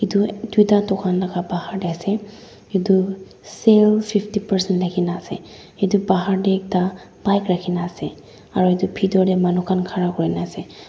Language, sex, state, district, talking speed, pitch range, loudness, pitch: Nagamese, female, Nagaland, Dimapur, 175 wpm, 180-205 Hz, -20 LUFS, 190 Hz